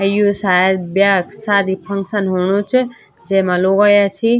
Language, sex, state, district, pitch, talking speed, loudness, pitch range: Garhwali, female, Uttarakhand, Tehri Garhwal, 195 Hz, 175 wpm, -15 LUFS, 190-205 Hz